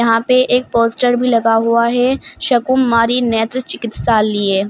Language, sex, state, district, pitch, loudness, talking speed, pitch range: Hindi, female, Uttar Pradesh, Shamli, 235 Hz, -14 LUFS, 155 wpm, 225-250 Hz